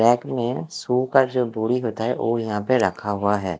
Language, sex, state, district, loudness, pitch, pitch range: Hindi, male, Odisha, Khordha, -22 LUFS, 120 Hz, 110-125 Hz